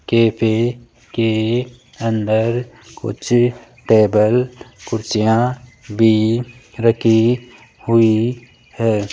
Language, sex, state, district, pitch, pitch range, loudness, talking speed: Hindi, male, Rajasthan, Jaipur, 115 Hz, 110-120 Hz, -17 LUFS, 65 wpm